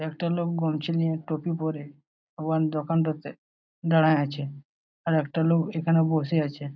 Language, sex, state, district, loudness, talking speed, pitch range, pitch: Bengali, male, West Bengal, Malda, -26 LUFS, 140 wpm, 150-165 Hz, 160 Hz